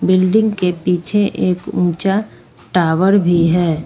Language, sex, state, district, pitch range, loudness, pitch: Hindi, female, Jharkhand, Ranchi, 170-190 Hz, -15 LUFS, 180 Hz